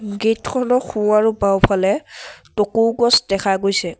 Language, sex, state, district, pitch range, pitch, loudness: Assamese, male, Assam, Sonitpur, 195-225 Hz, 210 Hz, -17 LUFS